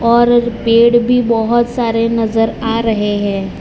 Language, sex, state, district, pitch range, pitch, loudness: Hindi, male, Gujarat, Valsad, 225-240 Hz, 230 Hz, -13 LUFS